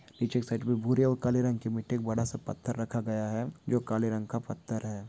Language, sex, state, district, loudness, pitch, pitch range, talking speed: Hindi, male, West Bengal, Jalpaiguri, -31 LUFS, 115 Hz, 115-125 Hz, 235 wpm